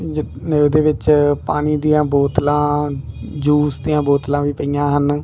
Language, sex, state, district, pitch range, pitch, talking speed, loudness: Punjabi, male, Punjab, Kapurthala, 145-150 Hz, 145 Hz, 125 wpm, -17 LUFS